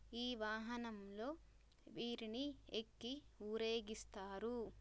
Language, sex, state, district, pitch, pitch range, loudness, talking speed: Telugu, female, Telangana, Karimnagar, 230 Hz, 215-240 Hz, -47 LUFS, 75 wpm